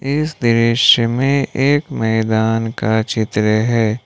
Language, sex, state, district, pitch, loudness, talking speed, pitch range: Hindi, male, Jharkhand, Ranchi, 115 Hz, -15 LUFS, 120 wpm, 110-135 Hz